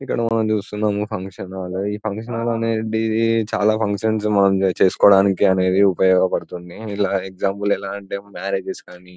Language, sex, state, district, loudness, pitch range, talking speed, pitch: Telugu, male, Telangana, Karimnagar, -20 LUFS, 95-110 Hz, 125 wpm, 100 Hz